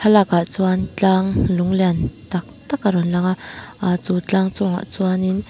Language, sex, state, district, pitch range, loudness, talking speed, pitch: Mizo, female, Mizoram, Aizawl, 180-190 Hz, -19 LUFS, 165 wpm, 185 Hz